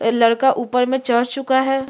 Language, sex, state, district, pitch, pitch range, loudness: Hindi, female, Chhattisgarh, Sukma, 260 Hz, 240-265 Hz, -18 LUFS